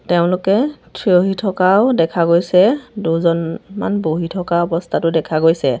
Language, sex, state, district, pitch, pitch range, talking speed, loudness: Assamese, female, Assam, Sonitpur, 180 Hz, 165-200 Hz, 125 wpm, -16 LUFS